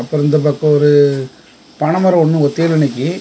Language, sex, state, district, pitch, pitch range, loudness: Tamil, male, Tamil Nadu, Kanyakumari, 150 Hz, 145-160 Hz, -13 LUFS